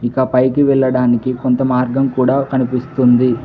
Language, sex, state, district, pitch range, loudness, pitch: Telugu, male, Telangana, Mahabubabad, 125-130 Hz, -14 LUFS, 130 Hz